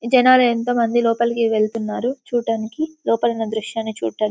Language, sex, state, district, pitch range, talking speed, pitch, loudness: Telugu, female, Telangana, Karimnagar, 225-245 Hz, 165 wpm, 230 Hz, -19 LUFS